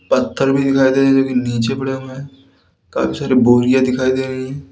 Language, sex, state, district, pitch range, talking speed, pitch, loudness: Hindi, male, Uttar Pradesh, Lalitpur, 125-135 Hz, 215 wpm, 130 Hz, -16 LUFS